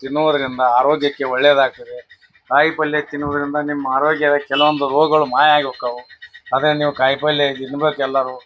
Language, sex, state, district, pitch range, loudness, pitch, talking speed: Kannada, male, Karnataka, Bijapur, 135-150 Hz, -17 LUFS, 145 Hz, 135 wpm